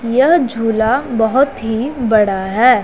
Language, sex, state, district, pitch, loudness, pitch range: Hindi, female, Punjab, Pathankot, 230 Hz, -14 LUFS, 225-265 Hz